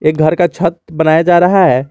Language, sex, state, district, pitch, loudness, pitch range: Hindi, male, Jharkhand, Garhwa, 160 Hz, -11 LUFS, 155-175 Hz